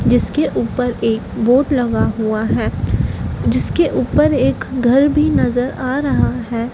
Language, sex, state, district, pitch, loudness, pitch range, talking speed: Hindi, female, Madhya Pradesh, Dhar, 245 Hz, -16 LUFS, 230-260 Hz, 145 wpm